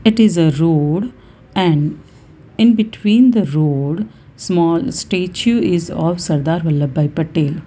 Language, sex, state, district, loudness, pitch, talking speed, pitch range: English, female, Gujarat, Valsad, -16 LUFS, 170 Hz, 125 wpm, 155-210 Hz